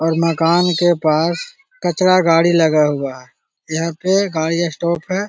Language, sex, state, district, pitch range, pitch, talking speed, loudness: Magahi, male, Bihar, Jahanabad, 160-180 Hz, 170 Hz, 160 wpm, -16 LUFS